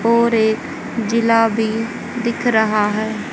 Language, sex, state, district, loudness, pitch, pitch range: Hindi, female, Haryana, Jhajjar, -18 LUFS, 225 Hz, 220-235 Hz